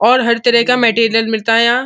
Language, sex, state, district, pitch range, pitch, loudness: Hindi, male, Uttar Pradesh, Muzaffarnagar, 225-245 Hz, 235 Hz, -12 LUFS